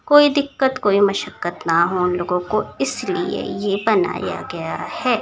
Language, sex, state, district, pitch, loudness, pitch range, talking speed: Hindi, female, Bihar, Muzaffarpur, 210 Hz, -20 LUFS, 180-265 Hz, 160 wpm